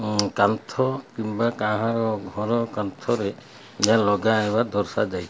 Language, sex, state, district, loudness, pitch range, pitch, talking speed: Odia, male, Odisha, Malkangiri, -24 LUFS, 105-115 Hz, 110 Hz, 125 wpm